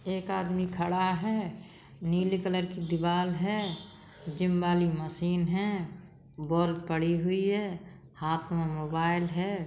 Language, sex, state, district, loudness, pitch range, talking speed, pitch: Bundeli, female, Uttar Pradesh, Budaun, -30 LUFS, 170-185 Hz, 130 wpm, 175 Hz